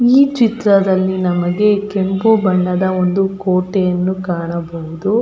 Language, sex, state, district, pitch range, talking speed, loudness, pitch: Kannada, female, Karnataka, Belgaum, 180-205 Hz, 90 wpm, -15 LUFS, 190 Hz